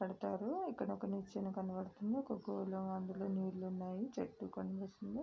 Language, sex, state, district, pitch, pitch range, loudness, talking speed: Telugu, female, Andhra Pradesh, Srikakulam, 195 Hz, 190-225 Hz, -43 LUFS, 135 wpm